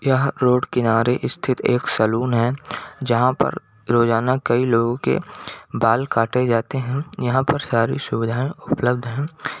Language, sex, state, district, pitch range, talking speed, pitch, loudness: Hindi, male, Chhattisgarh, Rajnandgaon, 115-130 Hz, 145 wpm, 125 Hz, -20 LUFS